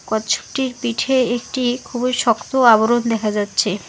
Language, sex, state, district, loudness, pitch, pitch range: Bengali, female, West Bengal, Alipurduar, -18 LUFS, 235 Hz, 220-250 Hz